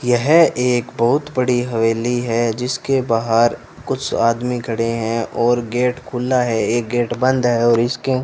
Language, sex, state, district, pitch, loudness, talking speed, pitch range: Hindi, male, Rajasthan, Bikaner, 120 Hz, -18 LUFS, 165 wpm, 115-125 Hz